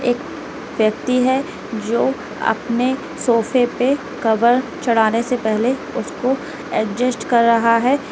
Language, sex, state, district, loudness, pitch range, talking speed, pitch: Hindi, female, Uttar Pradesh, Lalitpur, -18 LUFS, 230-260 Hz, 120 wpm, 250 Hz